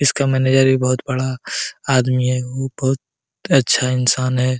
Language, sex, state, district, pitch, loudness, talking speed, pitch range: Hindi, male, Jharkhand, Jamtara, 130 Hz, -18 LUFS, 155 wpm, 125-135 Hz